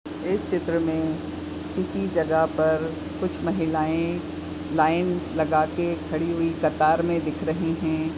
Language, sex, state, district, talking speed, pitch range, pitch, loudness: Hindi, female, Maharashtra, Aurangabad, 125 wpm, 155-165 Hz, 160 Hz, -25 LUFS